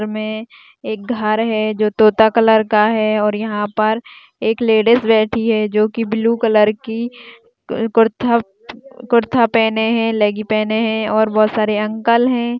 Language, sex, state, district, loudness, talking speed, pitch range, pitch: Hindi, female, Rajasthan, Nagaur, -16 LUFS, 155 wpm, 215-230 Hz, 220 Hz